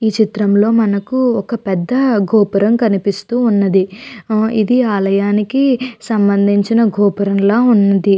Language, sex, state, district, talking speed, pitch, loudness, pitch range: Telugu, female, Andhra Pradesh, Chittoor, 115 wpm, 210 Hz, -14 LUFS, 200-230 Hz